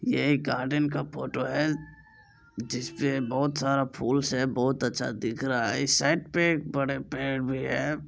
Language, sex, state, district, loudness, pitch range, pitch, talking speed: Maithili, male, Bihar, Supaul, -27 LUFS, 130-145 Hz, 140 Hz, 165 wpm